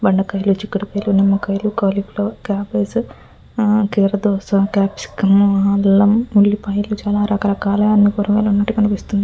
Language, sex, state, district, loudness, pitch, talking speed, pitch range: Telugu, female, Andhra Pradesh, Visakhapatnam, -16 LUFS, 205 Hz, 95 wpm, 200-210 Hz